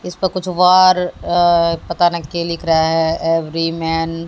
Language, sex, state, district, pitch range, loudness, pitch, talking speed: Hindi, female, Haryana, Jhajjar, 165-180 Hz, -16 LUFS, 170 Hz, 180 wpm